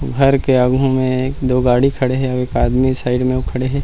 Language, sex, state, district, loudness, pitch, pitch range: Chhattisgarhi, male, Chhattisgarh, Rajnandgaon, -16 LUFS, 130 Hz, 125-130 Hz